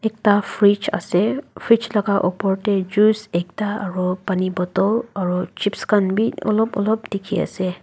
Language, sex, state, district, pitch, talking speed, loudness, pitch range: Nagamese, female, Nagaland, Dimapur, 205 Hz, 145 wpm, -20 LUFS, 185-215 Hz